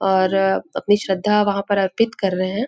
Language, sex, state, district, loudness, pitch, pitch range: Hindi, female, Chhattisgarh, Raigarh, -19 LUFS, 195 Hz, 190-210 Hz